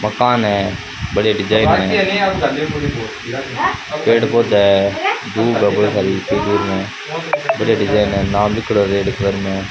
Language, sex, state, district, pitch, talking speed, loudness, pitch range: Rajasthani, male, Rajasthan, Churu, 105 Hz, 105 wpm, -16 LUFS, 100-115 Hz